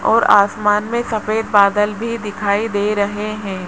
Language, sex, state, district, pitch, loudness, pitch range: Hindi, male, Rajasthan, Jaipur, 210 Hz, -17 LUFS, 205-215 Hz